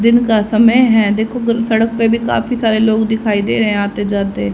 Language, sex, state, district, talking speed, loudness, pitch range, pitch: Hindi, female, Haryana, Rohtak, 210 wpm, -14 LUFS, 210-230 Hz, 220 Hz